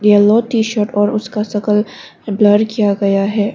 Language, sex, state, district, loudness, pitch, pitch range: Hindi, female, Arunachal Pradesh, Longding, -14 LUFS, 210 Hz, 205-215 Hz